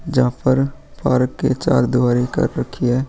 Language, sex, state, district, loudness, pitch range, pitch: Hindi, male, Bihar, Vaishali, -18 LUFS, 125-130 Hz, 125 Hz